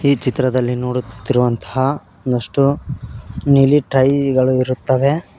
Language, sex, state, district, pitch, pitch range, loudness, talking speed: Kannada, male, Karnataka, Koppal, 130 Hz, 125-140 Hz, -17 LUFS, 90 wpm